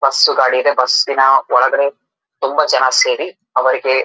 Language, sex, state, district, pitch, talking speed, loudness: Kannada, male, Karnataka, Dharwad, 140 Hz, 135 wpm, -14 LUFS